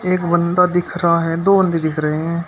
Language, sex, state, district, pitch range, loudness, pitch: Hindi, male, Uttar Pradesh, Shamli, 165-180 Hz, -16 LUFS, 170 Hz